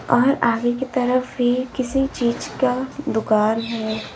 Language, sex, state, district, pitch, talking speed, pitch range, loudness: Hindi, female, Uttar Pradesh, Lalitpur, 245 Hz, 145 wpm, 230-260 Hz, -21 LUFS